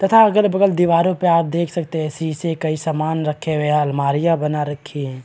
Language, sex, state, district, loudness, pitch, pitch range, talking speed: Hindi, male, Bihar, East Champaran, -18 LUFS, 160 Hz, 150-170 Hz, 215 wpm